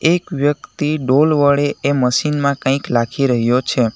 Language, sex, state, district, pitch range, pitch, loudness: Gujarati, male, Gujarat, Navsari, 130-150 Hz, 140 Hz, -16 LUFS